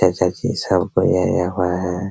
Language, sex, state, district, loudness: Hindi, male, Bihar, Araria, -19 LUFS